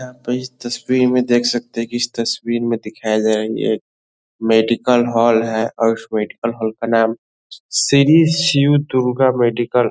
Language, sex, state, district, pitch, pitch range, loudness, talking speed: Hindi, male, Bihar, Lakhisarai, 120 Hz, 115-125 Hz, -17 LUFS, 180 wpm